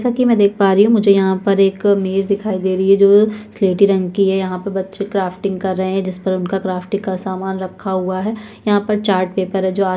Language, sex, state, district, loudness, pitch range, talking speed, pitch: Hindi, female, Chhattisgarh, Sukma, -16 LUFS, 190-200 Hz, 255 wpm, 195 Hz